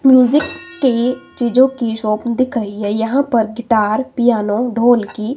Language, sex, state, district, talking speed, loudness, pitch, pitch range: Hindi, female, Himachal Pradesh, Shimla, 145 wpm, -16 LUFS, 240 Hz, 220-260 Hz